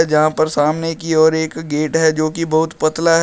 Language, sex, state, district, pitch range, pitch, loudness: Hindi, male, Uttar Pradesh, Shamli, 155-165 Hz, 160 Hz, -16 LUFS